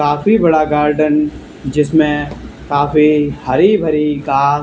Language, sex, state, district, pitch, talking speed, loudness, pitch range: Hindi, male, Haryana, Charkhi Dadri, 150 Hz, 105 wpm, -14 LUFS, 145-155 Hz